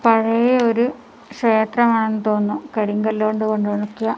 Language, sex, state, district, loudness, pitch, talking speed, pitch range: Malayalam, female, Kerala, Kasaragod, -19 LUFS, 220 Hz, 130 wpm, 215-235 Hz